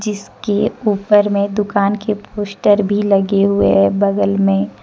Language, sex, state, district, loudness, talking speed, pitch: Hindi, female, Jharkhand, Deoghar, -15 LUFS, 150 wpm, 200 Hz